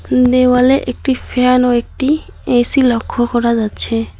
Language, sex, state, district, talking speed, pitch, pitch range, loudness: Bengali, female, West Bengal, Alipurduar, 130 wpm, 250 Hz, 240-255 Hz, -14 LUFS